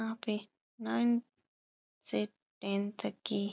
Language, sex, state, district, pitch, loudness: Hindi, female, Uttar Pradesh, Etah, 195 Hz, -36 LUFS